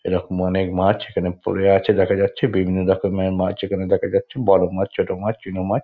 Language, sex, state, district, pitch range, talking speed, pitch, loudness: Bengali, male, West Bengal, Dakshin Dinajpur, 95-100 Hz, 205 wpm, 95 Hz, -20 LUFS